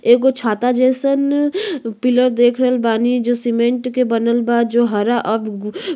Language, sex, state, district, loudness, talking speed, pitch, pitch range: Bhojpuri, female, Uttar Pradesh, Gorakhpur, -16 LUFS, 170 wpm, 240 Hz, 235-255 Hz